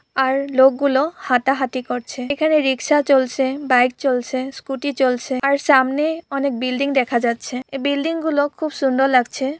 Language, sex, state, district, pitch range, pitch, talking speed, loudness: Bengali, female, West Bengal, Purulia, 260-285 Hz, 270 Hz, 105 wpm, -19 LUFS